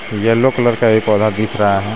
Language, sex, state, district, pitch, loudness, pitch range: Hindi, male, Jharkhand, Garhwa, 110 Hz, -14 LUFS, 105-115 Hz